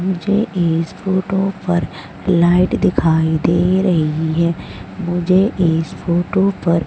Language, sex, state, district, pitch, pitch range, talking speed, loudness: Hindi, female, Madhya Pradesh, Umaria, 175 Hz, 170-190 Hz, 115 wpm, -16 LUFS